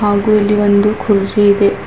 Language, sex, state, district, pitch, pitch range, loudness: Kannada, female, Karnataka, Bidar, 205 Hz, 200-210 Hz, -12 LUFS